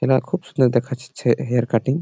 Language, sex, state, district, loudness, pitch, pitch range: Bengali, male, West Bengal, Malda, -20 LUFS, 130 Hz, 120-135 Hz